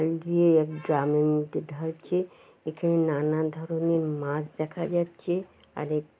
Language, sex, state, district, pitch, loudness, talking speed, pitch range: Bengali, female, West Bengal, Jalpaiguri, 160 Hz, -27 LUFS, 135 wpm, 150-170 Hz